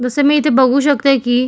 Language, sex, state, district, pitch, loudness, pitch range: Marathi, female, Maharashtra, Solapur, 270 Hz, -13 LUFS, 255-290 Hz